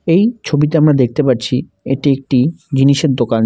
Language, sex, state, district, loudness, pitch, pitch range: Bengali, male, West Bengal, Alipurduar, -14 LUFS, 140 Hz, 130-155 Hz